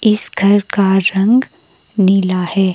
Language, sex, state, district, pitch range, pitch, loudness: Hindi, female, Himachal Pradesh, Shimla, 190-205 Hz, 195 Hz, -13 LUFS